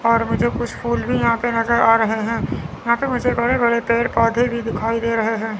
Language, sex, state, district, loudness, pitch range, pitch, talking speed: Hindi, female, Chandigarh, Chandigarh, -19 LUFS, 225-235 Hz, 230 Hz, 245 wpm